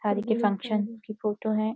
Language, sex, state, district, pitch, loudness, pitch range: Hindi, female, Uttarakhand, Uttarkashi, 215 Hz, -28 LUFS, 210-220 Hz